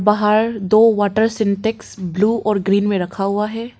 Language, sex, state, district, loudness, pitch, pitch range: Hindi, female, Arunachal Pradesh, Papum Pare, -17 LUFS, 210 Hz, 200-220 Hz